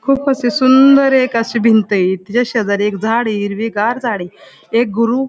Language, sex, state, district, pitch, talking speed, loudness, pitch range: Marathi, female, Maharashtra, Pune, 230 Hz, 170 wpm, -14 LUFS, 205-255 Hz